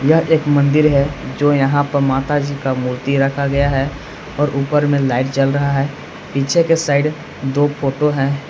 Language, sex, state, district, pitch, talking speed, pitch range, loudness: Hindi, male, Jharkhand, Palamu, 140 Hz, 190 wpm, 135-145 Hz, -16 LUFS